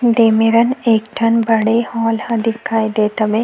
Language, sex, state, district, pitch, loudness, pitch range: Chhattisgarhi, female, Chhattisgarh, Sukma, 225 Hz, -15 LUFS, 220-230 Hz